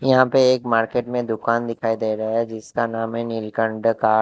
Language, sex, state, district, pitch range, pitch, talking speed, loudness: Hindi, male, Haryana, Jhajjar, 110-120 Hz, 115 Hz, 225 wpm, -21 LUFS